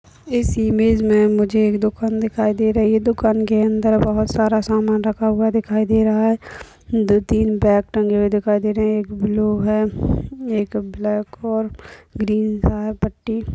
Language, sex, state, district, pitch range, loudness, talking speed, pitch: Hindi, female, Uttar Pradesh, Deoria, 210-220 Hz, -18 LUFS, 185 wpm, 215 Hz